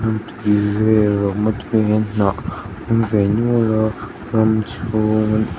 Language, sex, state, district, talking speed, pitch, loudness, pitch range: Mizo, male, Mizoram, Aizawl, 150 wpm, 110 Hz, -18 LUFS, 105-110 Hz